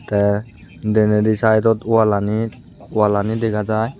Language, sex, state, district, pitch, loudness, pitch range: Chakma, male, Tripura, Unakoti, 110 Hz, -18 LUFS, 105-110 Hz